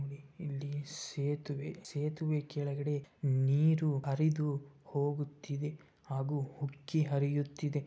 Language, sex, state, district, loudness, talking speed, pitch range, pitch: Kannada, male, Karnataka, Bellary, -35 LUFS, 75 wpm, 140-150 Hz, 145 Hz